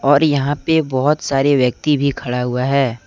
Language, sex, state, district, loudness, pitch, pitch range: Hindi, male, Jharkhand, Deoghar, -17 LUFS, 140 Hz, 130-150 Hz